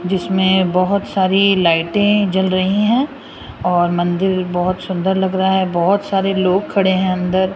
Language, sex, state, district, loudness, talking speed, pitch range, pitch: Hindi, female, Rajasthan, Jaipur, -16 LUFS, 160 wpm, 185-195 Hz, 190 Hz